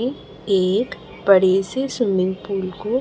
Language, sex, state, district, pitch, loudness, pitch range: Hindi, female, Chhattisgarh, Raipur, 195 Hz, -20 LUFS, 190-240 Hz